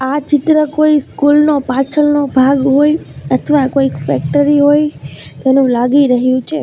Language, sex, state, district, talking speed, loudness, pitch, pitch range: Gujarati, female, Gujarat, Valsad, 145 wpm, -12 LUFS, 285 Hz, 270-295 Hz